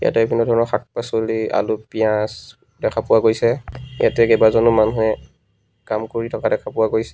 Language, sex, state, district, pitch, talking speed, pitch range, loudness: Assamese, male, Assam, Sonitpur, 110 Hz, 150 wpm, 110-115 Hz, -19 LUFS